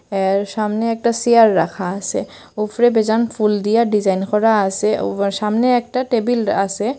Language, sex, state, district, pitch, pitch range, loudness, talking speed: Bengali, female, Assam, Hailakandi, 215 Hz, 200-230 Hz, -17 LUFS, 155 wpm